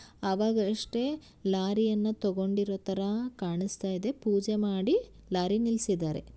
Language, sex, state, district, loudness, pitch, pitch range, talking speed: Kannada, female, Karnataka, Shimoga, -30 LUFS, 205 Hz, 195-220 Hz, 85 wpm